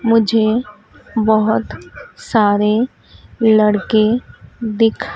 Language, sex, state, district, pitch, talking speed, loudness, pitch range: Hindi, female, Madhya Pradesh, Dhar, 220 Hz, 60 wpm, -16 LUFS, 215-230 Hz